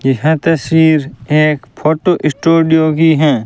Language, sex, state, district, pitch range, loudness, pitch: Hindi, male, Rajasthan, Bikaner, 150-160 Hz, -12 LUFS, 155 Hz